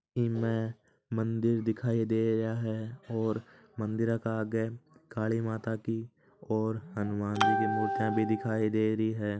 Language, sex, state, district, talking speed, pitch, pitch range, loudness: Marwari, male, Rajasthan, Nagaur, 140 wpm, 110 Hz, 110-115 Hz, -31 LUFS